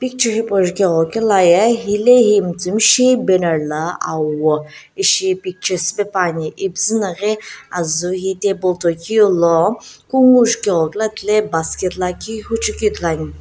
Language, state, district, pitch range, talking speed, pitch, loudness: Sumi, Nagaland, Dimapur, 170-220 Hz, 120 wpm, 195 Hz, -16 LUFS